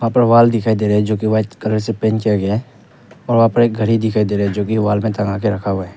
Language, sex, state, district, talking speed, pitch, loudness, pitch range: Hindi, male, Arunachal Pradesh, Papum Pare, 330 wpm, 110 Hz, -16 LUFS, 105-115 Hz